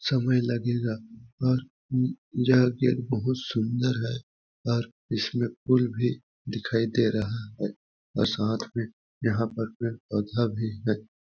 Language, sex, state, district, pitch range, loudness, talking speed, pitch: Hindi, male, Chhattisgarh, Balrampur, 110-125 Hz, -28 LUFS, 135 wpm, 120 Hz